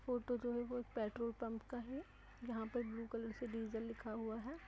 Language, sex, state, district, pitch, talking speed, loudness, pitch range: Hindi, female, Chhattisgarh, Rajnandgaon, 235 Hz, 230 wpm, -45 LUFS, 225-245 Hz